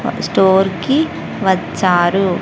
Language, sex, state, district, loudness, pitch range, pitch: Telugu, female, Andhra Pradesh, Sri Satya Sai, -15 LUFS, 180-195 Hz, 190 Hz